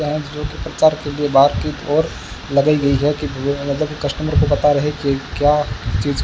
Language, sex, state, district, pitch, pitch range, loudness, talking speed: Hindi, male, Rajasthan, Bikaner, 145 Hz, 140-150 Hz, -18 LUFS, 210 wpm